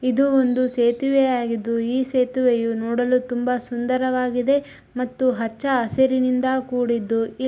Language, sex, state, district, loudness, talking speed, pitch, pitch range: Kannada, female, Karnataka, Shimoga, -21 LUFS, 110 wpm, 250 Hz, 240-260 Hz